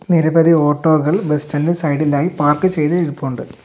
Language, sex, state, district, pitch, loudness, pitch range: Malayalam, male, Kerala, Kollam, 155 Hz, -15 LUFS, 150-170 Hz